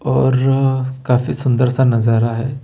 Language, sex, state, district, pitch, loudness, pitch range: Hindi, male, Chhattisgarh, Bastar, 130 Hz, -16 LUFS, 125-130 Hz